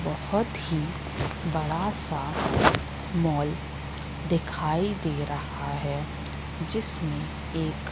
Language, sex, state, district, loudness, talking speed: Hindi, female, Madhya Pradesh, Katni, -28 LUFS, 85 wpm